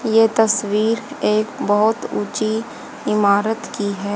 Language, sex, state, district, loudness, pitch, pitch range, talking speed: Hindi, female, Haryana, Charkhi Dadri, -19 LUFS, 215 Hz, 205-225 Hz, 115 wpm